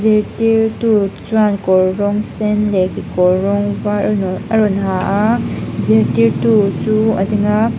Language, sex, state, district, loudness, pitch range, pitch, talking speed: Mizo, female, Mizoram, Aizawl, -15 LUFS, 185-215 Hz, 205 Hz, 155 wpm